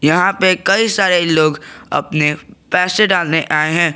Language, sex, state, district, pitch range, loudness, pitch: Hindi, male, Jharkhand, Garhwa, 155-185 Hz, -14 LUFS, 170 Hz